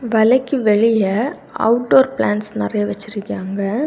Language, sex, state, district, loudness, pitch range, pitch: Tamil, female, Tamil Nadu, Kanyakumari, -17 LUFS, 200-245 Hz, 220 Hz